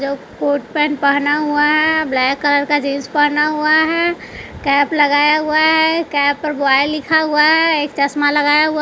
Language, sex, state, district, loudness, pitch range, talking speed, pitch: Hindi, female, Bihar, West Champaran, -14 LUFS, 285-310 Hz, 185 wpm, 295 Hz